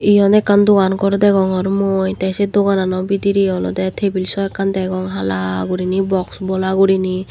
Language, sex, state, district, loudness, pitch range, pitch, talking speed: Chakma, female, Tripura, Dhalai, -16 LUFS, 185-200 Hz, 190 Hz, 170 wpm